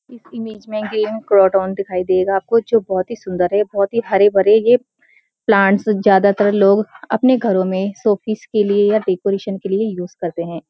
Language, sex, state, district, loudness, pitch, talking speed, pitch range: Hindi, female, Uttarakhand, Uttarkashi, -16 LUFS, 205 Hz, 185 wpm, 195-220 Hz